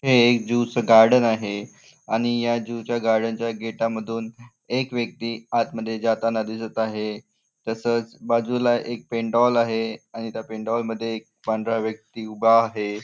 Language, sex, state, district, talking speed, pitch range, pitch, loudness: Marathi, male, Maharashtra, Nagpur, 150 wpm, 110-120 Hz, 115 Hz, -23 LUFS